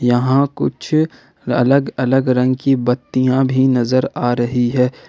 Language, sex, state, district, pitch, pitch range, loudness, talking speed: Hindi, male, Jharkhand, Ranchi, 130 Hz, 125-135 Hz, -16 LUFS, 140 wpm